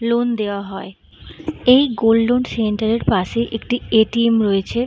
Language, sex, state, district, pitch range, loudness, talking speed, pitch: Bengali, female, West Bengal, Purulia, 210-235 Hz, -17 LUFS, 170 wpm, 225 Hz